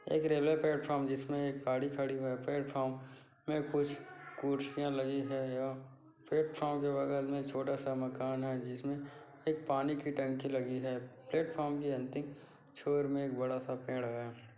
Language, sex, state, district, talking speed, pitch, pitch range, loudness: Hindi, male, Bihar, Kishanganj, 160 wpm, 140 Hz, 130-145 Hz, -37 LUFS